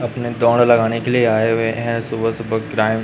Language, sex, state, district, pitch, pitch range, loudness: Hindi, male, Chhattisgarh, Raipur, 115 Hz, 110-120 Hz, -17 LUFS